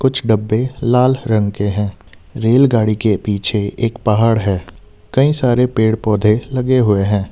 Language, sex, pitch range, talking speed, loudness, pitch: Hindi, male, 100-125 Hz, 155 wpm, -15 LUFS, 110 Hz